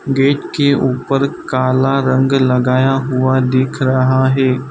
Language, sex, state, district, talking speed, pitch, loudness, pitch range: Hindi, male, Gujarat, Valsad, 125 wpm, 130 Hz, -14 LUFS, 130-135 Hz